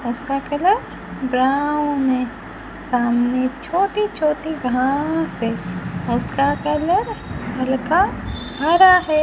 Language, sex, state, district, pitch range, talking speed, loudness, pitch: Hindi, female, Rajasthan, Bikaner, 255-325 Hz, 90 wpm, -19 LUFS, 290 Hz